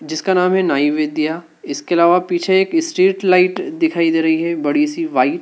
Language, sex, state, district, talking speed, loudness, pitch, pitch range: Hindi, male, Madhya Pradesh, Dhar, 210 wpm, -16 LUFS, 180 Hz, 160-190 Hz